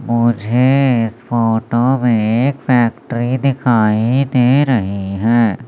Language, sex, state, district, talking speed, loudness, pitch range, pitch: Hindi, male, Madhya Pradesh, Umaria, 105 wpm, -15 LUFS, 115-130 Hz, 120 Hz